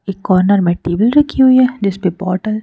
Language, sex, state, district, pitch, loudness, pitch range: Hindi, female, Madhya Pradesh, Bhopal, 200 Hz, -13 LUFS, 185-245 Hz